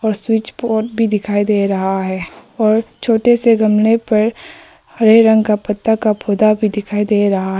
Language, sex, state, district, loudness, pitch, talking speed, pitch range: Hindi, female, Arunachal Pradesh, Papum Pare, -14 LUFS, 215 Hz, 180 wpm, 210-225 Hz